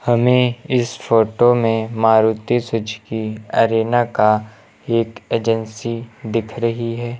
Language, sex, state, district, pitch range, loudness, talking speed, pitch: Hindi, male, Uttar Pradesh, Lucknow, 110-120 Hz, -18 LUFS, 110 wpm, 115 Hz